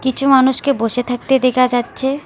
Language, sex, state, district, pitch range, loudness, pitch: Bengali, female, West Bengal, Alipurduar, 245-270 Hz, -15 LUFS, 260 Hz